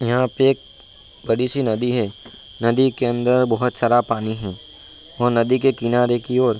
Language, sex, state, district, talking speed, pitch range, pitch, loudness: Hindi, male, Bihar, Bhagalpur, 190 wpm, 115-125 Hz, 120 Hz, -19 LUFS